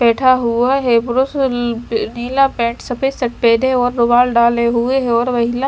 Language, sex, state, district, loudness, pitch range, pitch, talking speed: Hindi, female, Chandigarh, Chandigarh, -15 LUFS, 235-255 Hz, 245 Hz, 170 wpm